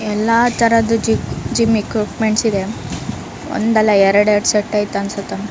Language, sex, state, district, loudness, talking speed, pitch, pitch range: Kannada, female, Karnataka, Raichur, -16 LUFS, 100 wpm, 215 Hz, 205-225 Hz